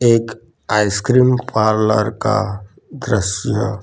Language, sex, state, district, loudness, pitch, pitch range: Hindi, male, Gujarat, Gandhinagar, -17 LUFS, 110 Hz, 105-120 Hz